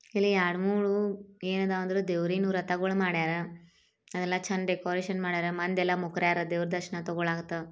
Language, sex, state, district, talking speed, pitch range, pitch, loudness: Kannada, female, Karnataka, Bijapur, 130 wpm, 175-190 Hz, 180 Hz, -30 LUFS